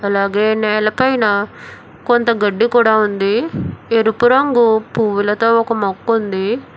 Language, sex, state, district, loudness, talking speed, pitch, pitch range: Telugu, female, Telangana, Hyderabad, -15 LUFS, 105 wpm, 220 Hz, 205-230 Hz